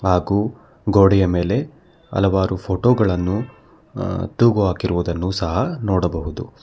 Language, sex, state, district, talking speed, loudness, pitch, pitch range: Kannada, male, Karnataka, Bangalore, 100 wpm, -19 LUFS, 100 Hz, 90-120 Hz